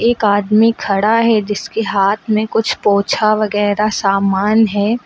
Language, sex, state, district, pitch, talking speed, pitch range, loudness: Hindi, female, Uttar Pradesh, Lucknow, 215 Hz, 140 wpm, 205-225 Hz, -14 LUFS